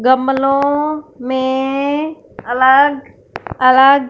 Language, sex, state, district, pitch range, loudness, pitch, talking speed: Hindi, female, Punjab, Fazilka, 260-285 Hz, -14 LUFS, 270 Hz, 60 wpm